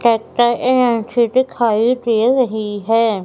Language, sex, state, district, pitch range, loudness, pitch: Hindi, female, Madhya Pradesh, Umaria, 225-245 Hz, -16 LUFS, 235 Hz